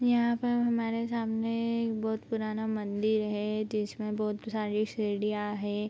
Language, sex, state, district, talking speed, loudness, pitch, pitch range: Hindi, female, Bihar, Araria, 140 wpm, -31 LUFS, 215 Hz, 210-230 Hz